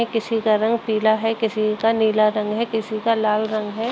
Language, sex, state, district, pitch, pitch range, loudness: Hindi, female, Uttar Pradesh, Budaun, 220 Hz, 215-225 Hz, -20 LUFS